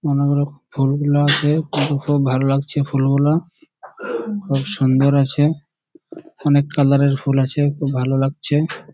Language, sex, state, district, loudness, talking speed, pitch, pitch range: Bengali, male, West Bengal, Kolkata, -18 LUFS, 120 wpm, 145 Hz, 140-150 Hz